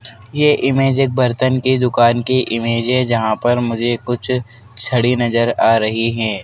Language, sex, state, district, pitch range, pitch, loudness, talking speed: Hindi, male, Madhya Pradesh, Dhar, 115-130 Hz, 120 Hz, -16 LUFS, 170 wpm